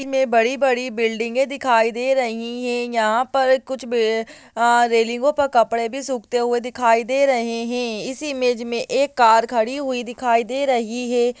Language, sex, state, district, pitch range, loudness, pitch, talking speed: Hindi, female, Bihar, Jahanabad, 230-260 Hz, -20 LUFS, 245 Hz, 170 wpm